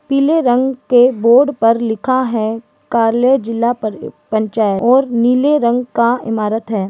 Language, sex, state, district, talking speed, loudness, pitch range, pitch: Hindi, female, Uttarakhand, Uttarkashi, 140 wpm, -14 LUFS, 225-255 Hz, 235 Hz